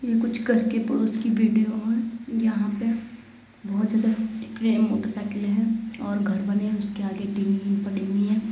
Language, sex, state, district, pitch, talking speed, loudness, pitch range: Hindi, female, Uttar Pradesh, Deoria, 220 Hz, 175 wpm, -25 LUFS, 205-230 Hz